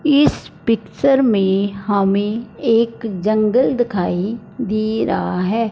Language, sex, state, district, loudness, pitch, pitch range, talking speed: Hindi, male, Punjab, Fazilka, -18 LUFS, 215 Hz, 200-235 Hz, 105 wpm